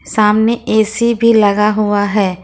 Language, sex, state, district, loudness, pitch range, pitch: Hindi, female, Jharkhand, Ranchi, -13 LUFS, 205-225 Hz, 210 Hz